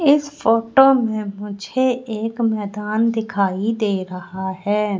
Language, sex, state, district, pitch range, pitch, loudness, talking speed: Hindi, female, Madhya Pradesh, Katni, 200-230 Hz, 215 Hz, -20 LUFS, 120 wpm